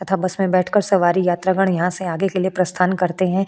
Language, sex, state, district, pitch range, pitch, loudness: Hindi, female, Goa, North and South Goa, 180-190 Hz, 185 Hz, -19 LUFS